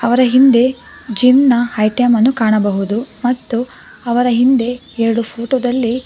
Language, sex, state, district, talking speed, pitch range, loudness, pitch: Kannada, female, Karnataka, Bangalore, 120 wpm, 230-255 Hz, -14 LUFS, 245 Hz